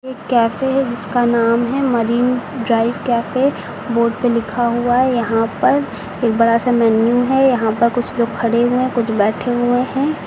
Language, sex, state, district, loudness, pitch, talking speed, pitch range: Hindi, female, Uttar Pradesh, Lucknow, -16 LUFS, 240 Hz, 180 wpm, 230-250 Hz